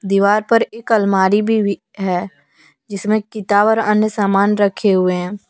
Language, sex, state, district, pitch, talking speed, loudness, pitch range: Hindi, female, Jharkhand, Deoghar, 205 Hz, 155 wpm, -16 LUFS, 195-215 Hz